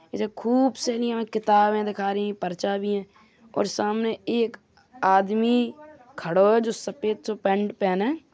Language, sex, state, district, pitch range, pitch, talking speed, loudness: Bundeli, female, Uttar Pradesh, Hamirpur, 200-230 Hz, 215 Hz, 165 wpm, -24 LUFS